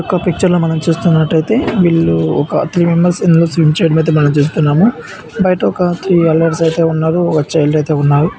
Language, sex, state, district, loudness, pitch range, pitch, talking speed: Telugu, male, Andhra Pradesh, Visakhapatnam, -12 LUFS, 155-175 Hz, 165 Hz, 170 wpm